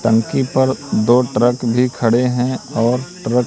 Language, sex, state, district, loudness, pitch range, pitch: Hindi, male, Madhya Pradesh, Katni, -16 LUFS, 120-130 Hz, 125 Hz